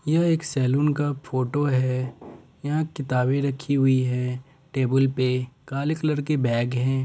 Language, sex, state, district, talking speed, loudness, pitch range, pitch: Hindi, male, Uttar Pradesh, Deoria, 155 wpm, -24 LUFS, 130-145 Hz, 135 Hz